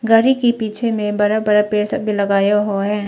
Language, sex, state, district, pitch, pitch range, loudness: Hindi, female, Arunachal Pradesh, Papum Pare, 210 Hz, 205-225 Hz, -16 LUFS